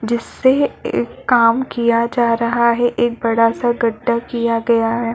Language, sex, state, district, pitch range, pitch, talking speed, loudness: Hindi, female, Chhattisgarh, Balrampur, 230-240 Hz, 235 Hz, 165 wpm, -16 LUFS